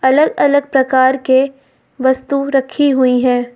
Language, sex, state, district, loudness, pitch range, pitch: Hindi, female, Uttar Pradesh, Lucknow, -14 LUFS, 260-275 Hz, 265 Hz